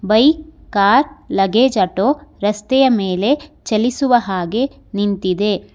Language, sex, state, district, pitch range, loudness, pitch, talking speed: Kannada, female, Karnataka, Bangalore, 200-270 Hz, -16 LUFS, 220 Hz, 95 wpm